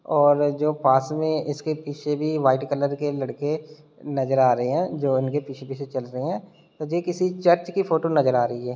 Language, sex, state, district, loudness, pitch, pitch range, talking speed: Hindi, male, Bihar, Muzaffarpur, -23 LUFS, 145 Hz, 135-155 Hz, 210 wpm